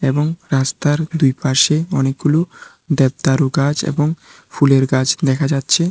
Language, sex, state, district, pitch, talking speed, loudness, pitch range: Bengali, male, Tripura, West Tripura, 140 Hz, 110 wpm, -16 LUFS, 135-155 Hz